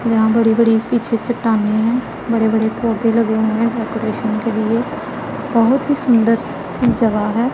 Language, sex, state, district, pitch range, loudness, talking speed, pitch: Hindi, female, Punjab, Pathankot, 220-235 Hz, -17 LUFS, 165 wpm, 230 Hz